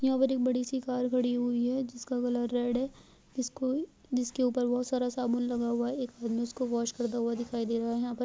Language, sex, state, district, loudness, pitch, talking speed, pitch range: Hindi, female, Andhra Pradesh, Krishna, -31 LUFS, 245 Hz, 255 wpm, 240-255 Hz